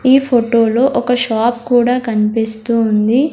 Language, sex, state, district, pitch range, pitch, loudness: Telugu, female, Andhra Pradesh, Sri Satya Sai, 225-250 Hz, 235 Hz, -14 LUFS